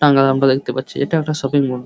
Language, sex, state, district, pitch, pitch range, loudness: Bengali, male, West Bengal, Paschim Medinipur, 135 Hz, 130-145 Hz, -17 LUFS